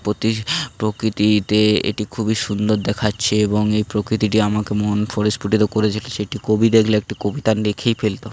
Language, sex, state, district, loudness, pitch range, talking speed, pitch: Bengali, male, West Bengal, Paschim Medinipur, -19 LUFS, 105-110 Hz, 145 wpm, 105 Hz